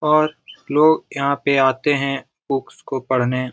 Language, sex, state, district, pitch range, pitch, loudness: Hindi, male, Bihar, Jamui, 130-145 Hz, 140 Hz, -19 LUFS